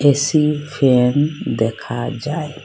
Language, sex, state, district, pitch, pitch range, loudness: Bengali, female, Assam, Hailakandi, 145 Hz, 125-150 Hz, -18 LUFS